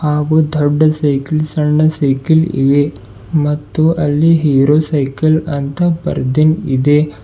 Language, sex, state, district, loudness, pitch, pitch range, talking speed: Kannada, male, Karnataka, Bidar, -13 LUFS, 150 Hz, 145-155 Hz, 110 wpm